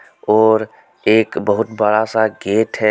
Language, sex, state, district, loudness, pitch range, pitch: Hindi, male, Jharkhand, Deoghar, -16 LUFS, 105-110 Hz, 110 Hz